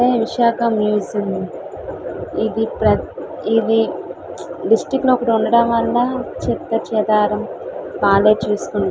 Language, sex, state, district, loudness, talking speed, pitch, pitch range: Telugu, female, Andhra Pradesh, Visakhapatnam, -18 LUFS, 95 wpm, 225 Hz, 215-240 Hz